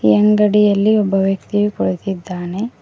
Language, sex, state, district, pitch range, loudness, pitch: Kannada, female, Karnataka, Koppal, 185-210 Hz, -16 LUFS, 200 Hz